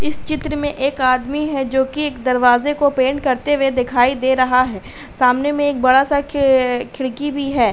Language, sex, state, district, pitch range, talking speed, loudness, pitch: Hindi, female, Uttar Pradesh, Hamirpur, 255-290 Hz, 200 wpm, -17 LUFS, 270 Hz